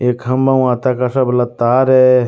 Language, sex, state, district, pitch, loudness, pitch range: Marwari, male, Rajasthan, Nagaur, 125 Hz, -14 LUFS, 125-130 Hz